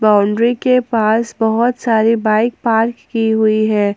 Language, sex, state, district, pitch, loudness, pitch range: Hindi, female, Jharkhand, Ranchi, 225 Hz, -15 LUFS, 215-235 Hz